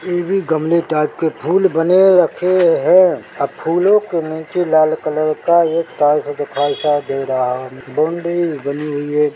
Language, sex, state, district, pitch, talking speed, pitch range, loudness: Hindi, male, Chhattisgarh, Bilaspur, 160 Hz, 175 wpm, 145-175 Hz, -16 LUFS